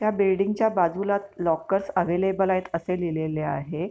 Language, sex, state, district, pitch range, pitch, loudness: Marathi, female, Maharashtra, Pune, 170-195 Hz, 185 Hz, -25 LUFS